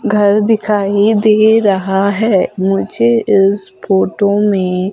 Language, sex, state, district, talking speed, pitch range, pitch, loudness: Hindi, female, Madhya Pradesh, Umaria, 110 wpm, 195-215 Hz, 200 Hz, -12 LUFS